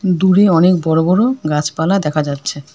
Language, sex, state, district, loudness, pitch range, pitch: Bengali, female, West Bengal, Alipurduar, -14 LUFS, 150-190 Hz, 165 Hz